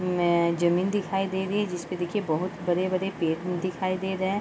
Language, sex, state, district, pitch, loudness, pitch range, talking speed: Hindi, female, Jharkhand, Jamtara, 185 Hz, -27 LUFS, 175-190 Hz, 260 wpm